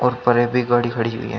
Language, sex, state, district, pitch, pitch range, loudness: Hindi, male, Uttar Pradesh, Shamli, 120 Hz, 115-125 Hz, -19 LUFS